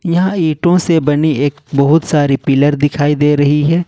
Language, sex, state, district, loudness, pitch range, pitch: Hindi, male, Jharkhand, Ranchi, -13 LUFS, 145-165 Hz, 150 Hz